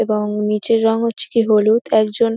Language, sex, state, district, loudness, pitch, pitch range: Bengali, female, West Bengal, North 24 Parganas, -16 LUFS, 220 Hz, 210-230 Hz